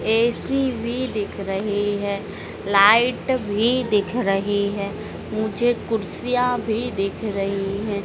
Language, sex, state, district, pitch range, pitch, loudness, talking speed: Hindi, female, Madhya Pradesh, Dhar, 200-240 Hz, 210 Hz, -22 LUFS, 120 wpm